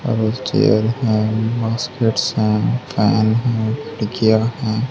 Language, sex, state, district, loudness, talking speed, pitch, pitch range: Hindi, male, Haryana, Charkhi Dadri, -18 LUFS, 110 wpm, 110 Hz, 110-120 Hz